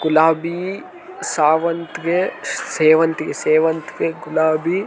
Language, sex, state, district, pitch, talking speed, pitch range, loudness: Kannada, male, Karnataka, Dharwad, 160 Hz, 75 wpm, 155-175 Hz, -18 LUFS